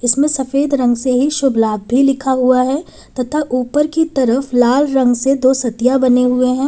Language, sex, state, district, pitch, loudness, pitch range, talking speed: Hindi, female, Uttar Pradesh, Lalitpur, 260 Hz, -14 LUFS, 250-275 Hz, 205 wpm